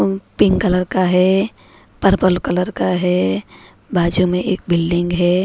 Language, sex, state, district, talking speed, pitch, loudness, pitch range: Hindi, female, Maharashtra, Mumbai Suburban, 75 wpm, 180 Hz, -17 LUFS, 170-185 Hz